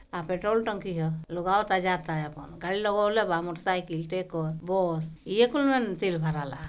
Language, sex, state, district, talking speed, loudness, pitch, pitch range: Bhojpuri, female, Bihar, Gopalganj, 145 wpm, -28 LUFS, 180 Hz, 160-200 Hz